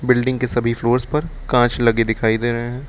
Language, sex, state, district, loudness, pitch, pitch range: Hindi, male, Uttar Pradesh, Lucknow, -18 LUFS, 120 Hz, 115-125 Hz